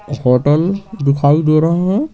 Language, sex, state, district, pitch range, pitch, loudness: Hindi, male, Bihar, Patna, 140-180 Hz, 155 Hz, -14 LUFS